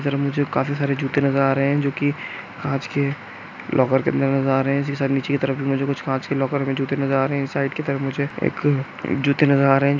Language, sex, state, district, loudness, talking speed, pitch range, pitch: Hindi, male, Andhra Pradesh, Chittoor, -21 LUFS, 290 wpm, 135-140 Hz, 140 Hz